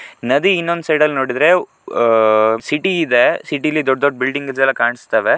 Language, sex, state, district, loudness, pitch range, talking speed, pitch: Kannada, male, Karnataka, Shimoga, -15 LUFS, 120-155 Hz, 145 wpm, 140 Hz